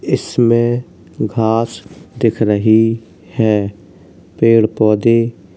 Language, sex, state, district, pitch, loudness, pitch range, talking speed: Hindi, male, Uttar Pradesh, Hamirpur, 110 Hz, -14 LUFS, 100-115 Hz, 85 wpm